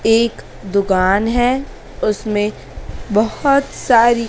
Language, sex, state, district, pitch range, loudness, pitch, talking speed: Hindi, female, Madhya Pradesh, Dhar, 205-240 Hz, -16 LUFS, 225 Hz, 85 wpm